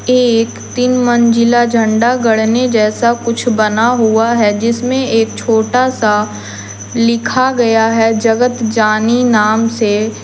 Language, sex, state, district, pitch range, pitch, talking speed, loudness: Hindi, female, Jharkhand, Deoghar, 220-240 Hz, 230 Hz, 125 wpm, -12 LUFS